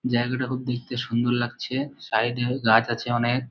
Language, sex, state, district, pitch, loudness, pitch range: Bengali, male, West Bengal, Malda, 120 Hz, -25 LUFS, 120-130 Hz